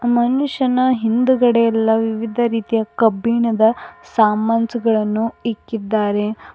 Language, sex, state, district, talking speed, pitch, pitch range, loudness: Kannada, female, Karnataka, Bidar, 80 wpm, 230 Hz, 220-240 Hz, -17 LUFS